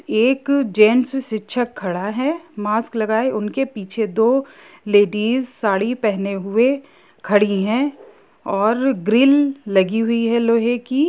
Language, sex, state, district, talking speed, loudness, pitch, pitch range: Hindi, female, Jharkhand, Jamtara, 125 wpm, -18 LUFS, 230 Hz, 210-260 Hz